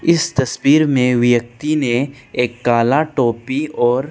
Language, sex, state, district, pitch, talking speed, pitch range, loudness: Hindi, male, Arunachal Pradesh, Lower Dibang Valley, 130 Hz, 130 wpm, 120-150 Hz, -16 LUFS